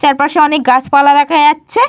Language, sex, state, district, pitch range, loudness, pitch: Bengali, female, Jharkhand, Jamtara, 285-305 Hz, -9 LUFS, 295 Hz